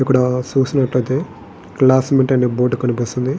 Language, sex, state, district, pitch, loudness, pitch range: Telugu, male, Andhra Pradesh, Srikakulam, 125 Hz, -16 LUFS, 125-130 Hz